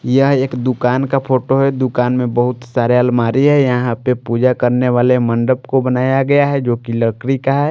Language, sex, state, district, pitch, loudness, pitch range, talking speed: Hindi, male, Maharashtra, Washim, 125 Hz, -15 LUFS, 120-135 Hz, 210 wpm